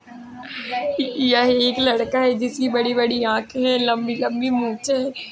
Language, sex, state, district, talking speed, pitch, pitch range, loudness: Hindi, female, Uttar Pradesh, Jalaun, 125 wpm, 245 Hz, 240-255 Hz, -20 LUFS